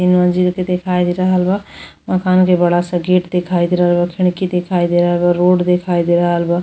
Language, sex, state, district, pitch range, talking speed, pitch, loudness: Bhojpuri, female, Uttar Pradesh, Deoria, 175-180 Hz, 235 wpm, 180 Hz, -15 LUFS